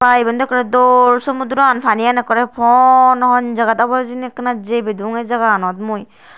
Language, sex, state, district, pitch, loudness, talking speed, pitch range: Chakma, female, Tripura, Dhalai, 245 Hz, -14 LUFS, 180 wpm, 230-250 Hz